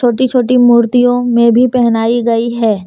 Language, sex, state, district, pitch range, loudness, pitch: Hindi, female, Jharkhand, Deoghar, 235-245 Hz, -11 LUFS, 240 Hz